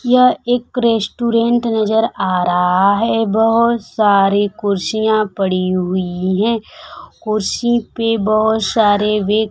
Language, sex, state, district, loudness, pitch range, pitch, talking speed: Hindi, female, Bihar, Kaimur, -15 LUFS, 200-230 Hz, 215 Hz, 115 wpm